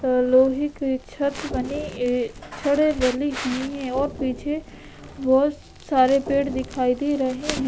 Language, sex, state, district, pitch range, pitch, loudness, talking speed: Hindi, female, Uttar Pradesh, Etah, 255-285 Hz, 270 Hz, -23 LUFS, 100 wpm